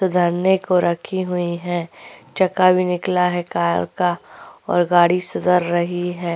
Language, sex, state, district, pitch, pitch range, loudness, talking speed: Hindi, female, Chhattisgarh, Korba, 180 Hz, 175-185 Hz, -19 LUFS, 150 wpm